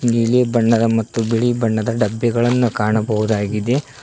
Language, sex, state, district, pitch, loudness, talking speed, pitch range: Kannada, male, Karnataka, Koppal, 115 Hz, -17 LUFS, 105 wpm, 110-120 Hz